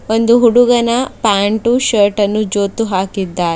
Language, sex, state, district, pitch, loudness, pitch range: Kannada, female, Karnataka, Bidar, 215 Hz, -13 LUFS, 200-235 Hz